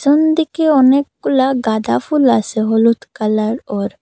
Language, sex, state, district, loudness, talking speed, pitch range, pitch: Bengali, female, Assam, Hailakandi, -15 LUFS, 120 wpm, 220-285 Hz, 250 Hz